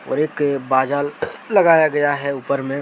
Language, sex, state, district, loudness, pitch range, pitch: Hindi, male, Jharkhand, Deoghar, -18 LUFS, 140-145 Hz, 145 Hz